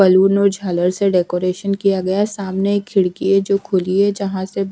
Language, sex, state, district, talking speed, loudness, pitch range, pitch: Hindi, female, Haryana, Charkhi Dadri, 215 wpm, -17 LUFS, 185-200 Hz, 195 Hz